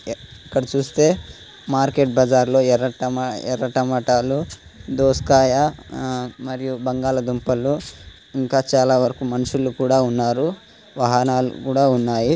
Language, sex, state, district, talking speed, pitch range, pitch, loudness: Telugu, male, Telangana, Nalgonda, 105 wpm, 125-135 Hz, 130 Hz, -20 LUFS